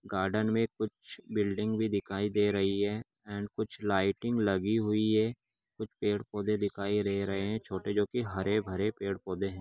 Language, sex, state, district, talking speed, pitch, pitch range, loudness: Magahi, male, Bihar, Gaya, 170 wpm, 105 Hz, 100-110 Hz, -32 LUFS